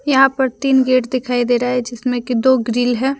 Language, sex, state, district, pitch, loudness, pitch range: Hindi, female, Jharkhand, Deoghar, 250 Hz, -16 LUFS, 245-265 Hz